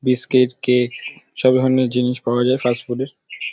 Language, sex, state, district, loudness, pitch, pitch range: Bengali, male, West Bengal, Dakshin Dinajpur, -18 LUFS, 125 Hz, 125-130 Hz